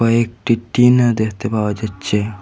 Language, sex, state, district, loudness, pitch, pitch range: Bengali, male, Assam, Hailakandi, -17 LUFS, 115 Hz, 105-115 Hz